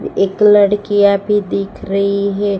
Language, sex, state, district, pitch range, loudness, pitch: Hindi, female, Gujarat, Gandhinagar, 200-205 Hz, -14 LUFS, 200 Hz